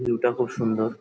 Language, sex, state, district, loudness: Bengali, male, West Bengal, Dakshin Dinajpur, -25 LUFS